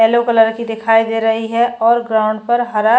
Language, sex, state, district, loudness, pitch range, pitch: Hindi, female, Uttar Pradesh, Jyotiba Phule Nagar, -15 LUFS, 225-235 Hz, 225 Hz